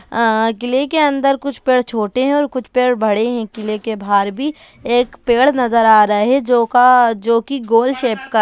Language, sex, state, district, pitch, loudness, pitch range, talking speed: Hindi, female, Bihar, Jahanabad, 240 Hz, -15 LUFS, 225-260 Hz, 220 wpm